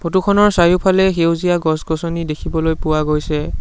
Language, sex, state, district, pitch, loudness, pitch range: Assamese, male, Assam, Sonitpur, 165 Hz, -16 LUFS, 155-180 Hz